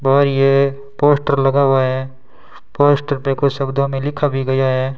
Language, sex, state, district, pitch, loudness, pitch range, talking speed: Hindi, male, Rajasthan, Bikaner, 135 Hz, -16 LUFS, 135-140 Hz, 180 wpm